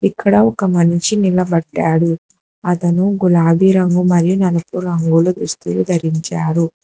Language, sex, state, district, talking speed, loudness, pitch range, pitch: Telugu, female, Telangana, Hyderabad, 105 wpm, -15 LUFS, 165-185 Hz, 175 Hz